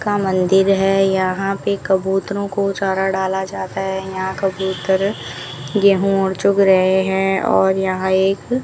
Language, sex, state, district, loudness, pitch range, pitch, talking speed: Hindi, female, Rajasthan, Bikaner, -17 LUFS, 190-195 Hz, 190 Hz, 155 wpm